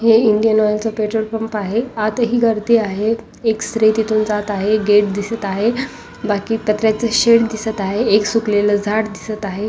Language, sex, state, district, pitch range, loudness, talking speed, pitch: Marathi, female, Maharashtra, Solapur, 210-225 Hz, -17 LUFS, 180 wpm, 215 Hz